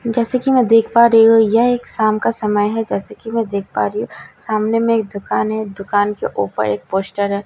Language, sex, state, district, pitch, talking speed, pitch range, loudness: Hindi, female, Bihar, Katihar, 220 Hz, 250 wpm, 200-230 Hz, -16 LUFS